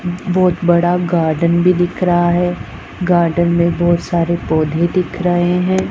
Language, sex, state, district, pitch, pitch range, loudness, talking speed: Hindi, female, Punjab, Pathankot, 175 Hz, 170-180 Hz, -15 LUFS, 150 wpm